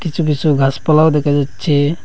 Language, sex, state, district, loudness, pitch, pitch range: Bengali, male, Assam, Hailakandi, -14 LUFS, 150 Hz, 145-155 Hz